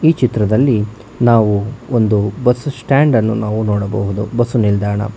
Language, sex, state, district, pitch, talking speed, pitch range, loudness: Kannada, male, Karnataka, Bangalore, 110 Hz, 125 wpm, 105-125 Hz, -15 LUFS